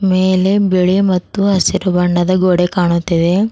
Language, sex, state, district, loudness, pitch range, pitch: Kannada, female, Karnataka, Bidar, -14 LUFS, 180-195 Hz, 185 Hz